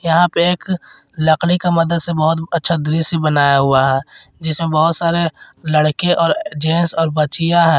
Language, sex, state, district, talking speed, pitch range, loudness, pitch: Hindi, male, Jharkhand, Garhwa, 170 wpm, 155-170 Hz, -16 LUFS, 165 Hz